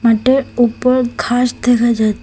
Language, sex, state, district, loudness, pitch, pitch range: Bengali, female, Assam, Hailakandi, -14 LUFS, 240 Hz, 230-250 Hz